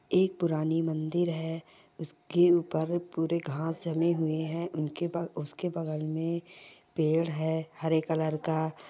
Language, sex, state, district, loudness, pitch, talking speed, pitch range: Hindi, female, Bihar, Saran, -30 LUFS, 160 Hz, 130 wpm, 160-170 Hz